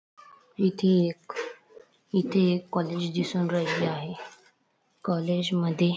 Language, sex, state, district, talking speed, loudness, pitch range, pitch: Marathi, female, Maharashtra, Dhule, 100 wpm, -27 LUFS, 175-200 Hz, 180 Hz